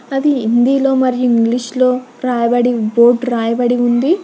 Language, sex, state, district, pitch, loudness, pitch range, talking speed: Telugu, female, Telangana, Hyderabad, 245 Hz, -14 LUFS, 240-255 Hz, 125 wpm